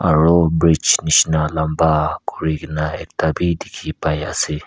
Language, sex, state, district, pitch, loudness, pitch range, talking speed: Nagamese, male, Nagaland, Kohima, 80 Hz, -17 LUFS, 75-80 Hz, 140 wpm